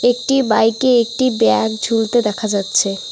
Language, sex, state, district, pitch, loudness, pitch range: Bengali, female, West Bengal, Cooch Behar, 225 Hz, -16 LUFS, 210-245 Hz